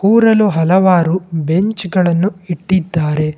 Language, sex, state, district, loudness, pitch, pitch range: Kannada, male, Karnataka, Bangalore, -14 LUFS, 180 Hz, 165-190 Hz